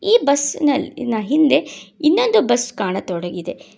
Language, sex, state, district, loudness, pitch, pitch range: Kannada, female, Karnataka, Bangalore, -18 LUFS, 280 Hz, 215-310 Hz